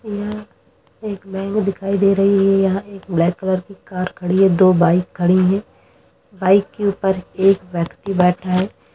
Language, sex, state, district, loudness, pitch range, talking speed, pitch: Hindi, female, Uttar Pradesh, Jalaun, -18 LUFS, 185-200 Hz, 175 wpm, 195 Hz